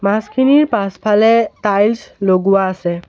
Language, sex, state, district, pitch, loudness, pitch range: Assamese, male, Assam, Sonitpur, 205 Hz, -14 LUFS, 195-230 Hz